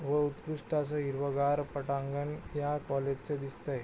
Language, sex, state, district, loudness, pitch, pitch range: Marathi, male, Maharashtra, Pune, -34 LUFS, 145 Hz, 140-150 Hz